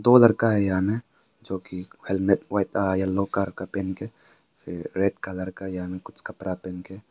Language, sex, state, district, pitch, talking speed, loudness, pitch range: Hindi, male, Arunachal Pradesh, Papum Pare, 95 Hz, 185 wpm, -26 LUFS, 95-100 Hz